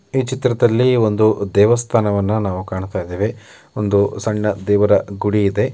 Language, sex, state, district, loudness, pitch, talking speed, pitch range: Kannada, male, Karnataka, Mysore, -17 LUFS, 105 Hz, 125 wpm, 100-115 Hz